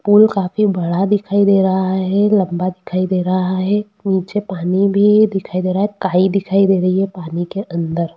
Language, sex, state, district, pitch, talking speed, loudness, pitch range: Hindi, female, Jharkhand, Jamtara, 190 Hz, 200 wpm, -16 LUFS, 185-200 Hz